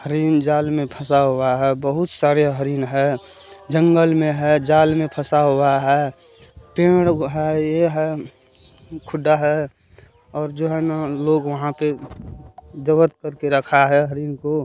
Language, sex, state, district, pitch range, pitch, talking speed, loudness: Hindi, male, Bihar, Kishanganj, 140-155 Hz, 150 Hz, 85 wpm, -18 LUFS